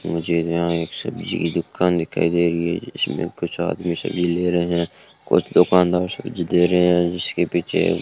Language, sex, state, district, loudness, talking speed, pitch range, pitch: Hindi, male, Rajasthan, Bikaner, -20 LUFS, 185 wpm, 85-90 Hz, 85 Hz